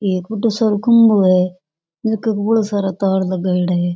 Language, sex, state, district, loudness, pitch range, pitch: Rajasthani, female, Rajasthan, Churu, -16 LUFS, 185-220 Hz, 195 Hz